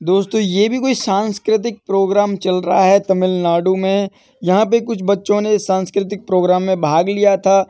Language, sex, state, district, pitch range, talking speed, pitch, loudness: Hindi, male, Uttar Pradesh, Etah, 190-205 Hz, 170 wpm, 195 Hz, -16 LUFS